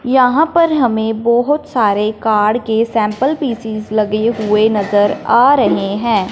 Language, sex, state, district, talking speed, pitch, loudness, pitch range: Hindi, male, Punjab, Fazilka, 140 wpm, 225 Hz, -14 LUFS, 215-250 Hz